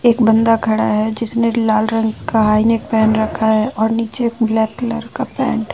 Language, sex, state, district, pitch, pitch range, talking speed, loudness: Hindi, female, Jharkhand, Ranchi, 225 Hz, 220-230 Hz, 200 wpm, -16 LUFS